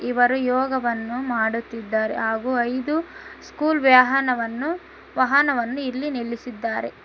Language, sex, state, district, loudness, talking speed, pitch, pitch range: Kannada, female, Karnataka, Koppal, -22 LUFS, 85 wpm, 255 Hz, 235-280 Hz